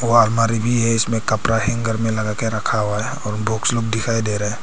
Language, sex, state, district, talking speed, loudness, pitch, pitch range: Hindi, male, Arunachal Pradesh, Papum Pare, 260 wpm, -19 LUFS, 115 Hz, 110-115 Hz